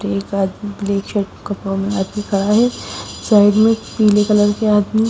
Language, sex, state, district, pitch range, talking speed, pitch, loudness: Hindi, female, Odisha, Sambalpur, 200-215 Hz, 175 wpm, 205 Hz, -16 LUFS